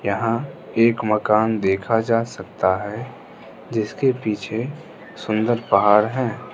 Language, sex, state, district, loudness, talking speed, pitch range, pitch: Hindi, male, Arunachal Pradesh, Lower Dibang Valley, -20 LUFS, 110 wpm, 105-115 Hz, 110 Hz